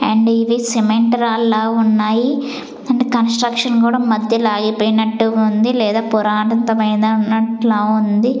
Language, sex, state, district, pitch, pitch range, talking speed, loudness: Telugu, female, Andhra Pradesh, Sri Satya Sai, 225 Hz, 220-235 Hz, 100 wpm, -15 LUFS